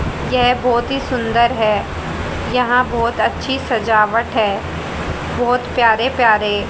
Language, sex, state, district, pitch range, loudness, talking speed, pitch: Hindi, female, Haryana, Rohtak, 225-250 Hz, -16 LUFS, 115 wpm, 235 Hz